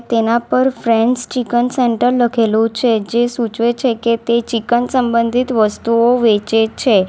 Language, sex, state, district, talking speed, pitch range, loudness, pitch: Gujarati, female, Gujarat, Valsad, 145 wpm, 230-245 Hz, -15 LUFS, 235 Hz